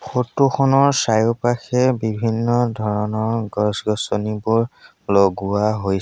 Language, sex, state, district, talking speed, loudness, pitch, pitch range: Assamese, male, Assam, Sonitpur, 90 wpm, -19 LUFS, 110 Hz, 105-120 Hz